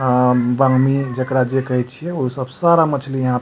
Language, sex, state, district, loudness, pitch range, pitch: Maithili, male, Bihar, Supaul, -17 LUFS, 125-135 Hz, 130 Hz